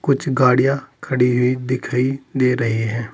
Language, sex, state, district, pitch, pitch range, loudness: Hindi, male, Uttar Pradesh, Saharanpur, 125 Hz, 125-135 Hz, -18 LUFS